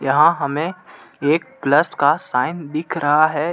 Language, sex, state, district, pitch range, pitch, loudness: Hindi, male, Jharkhand, Ranchi, 145-165 Hz, 155 Hz, -18 LUFS